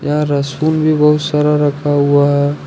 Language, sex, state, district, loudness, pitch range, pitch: Hindi, male, Jharkhand, Ranchi, -13 LUFS, 145-150 Hz, 145 Hz